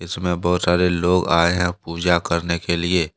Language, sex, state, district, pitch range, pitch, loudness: Hindi, male, Jharkhand, Deoghar, 85-90 Hz, 85 Hz, -19 LUFS